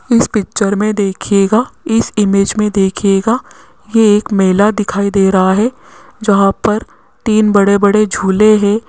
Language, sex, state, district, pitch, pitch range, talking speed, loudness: Hindi, female, Rajasthan, Jaipur, 205 Hz, 195-215 Hz, 150 wpm, -12 LUFS